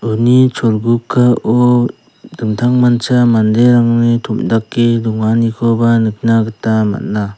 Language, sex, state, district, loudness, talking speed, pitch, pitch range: Garo, male, Meghalaya, South Garo Hills, -12 LUFS, 75 wpm, 115 Hz, 110-120 Hz